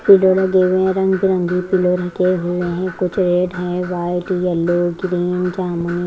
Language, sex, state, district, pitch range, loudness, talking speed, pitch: Hindi, female, Haryana, Jhajjar, 175-185 Hz, -17 LUFS, 170 wpm, 180 Hz